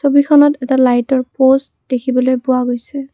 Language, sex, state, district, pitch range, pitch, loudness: Assamese, female, Assam, Kamrup Metropolitan, 255-280 Hz, 260 Hz, -14 LUFS